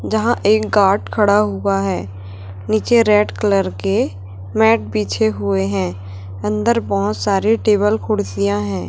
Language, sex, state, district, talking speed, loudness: Hindi, male, Chhattisgarh, Raipur, 135 wpm, -17 LUFS